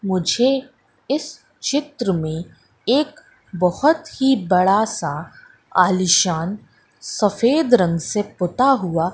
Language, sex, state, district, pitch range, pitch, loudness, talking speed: Hindi, female, Madhya Pradesh, Katni, 180-270 Hz, 210 Hz, -19 LUFS, 100 wpm